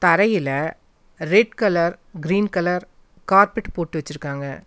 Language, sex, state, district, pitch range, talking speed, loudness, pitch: Tamil, female, Tamil Nadu, Nilgiris, 160-205 Hz, 100 wpm, -20 LUFS, 180 Hz